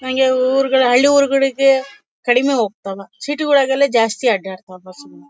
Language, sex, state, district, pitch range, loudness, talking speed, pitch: Kannada, male, Karnataka, Bellary, 210-275 Hz, -15 LUFS, 135 wpm, 260 Hz